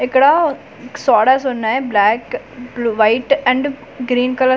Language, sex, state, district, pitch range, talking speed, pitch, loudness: Telugu, female, Andhra Pradesh, Manyam, 245-275 Hz, 145 wpm, 255 Hz, -15 LUFS